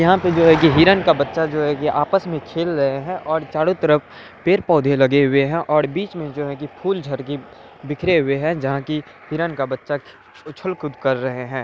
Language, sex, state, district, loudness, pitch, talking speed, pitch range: Hindi, male, Bihar, Araria, -19 LUFS, 150 Hz, 230 wpm, 140-170 Hz